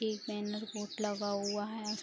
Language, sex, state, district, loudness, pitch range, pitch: Hindi, female, Bihar, Araria, -37 LUFS, 205-215 Hz, 210 Hz